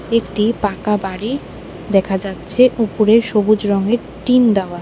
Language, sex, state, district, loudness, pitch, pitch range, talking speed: Bengali, female, West Bengal, Alipurduar, -16 LUFS, 210 Hz, 195-230 Hz, 125 wpm